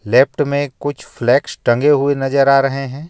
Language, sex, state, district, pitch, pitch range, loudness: Hindi, male, Jharkhand, Ranchi, 140 Hz, 135-145 Hz, -16 LUFS